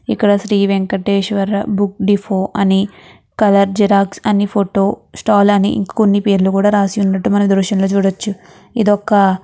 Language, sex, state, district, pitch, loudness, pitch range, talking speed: Telugu, female, Andhra Pradesh, Guntur, 200 Hz, -14 LUFS, 195-205 Hz, 145 wpm